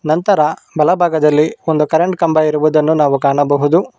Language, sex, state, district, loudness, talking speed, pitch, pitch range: Kannada, male, Karnataka, Bangalore, -13 LUFS, 135 wpm, 155 Hz, 150-165 Hz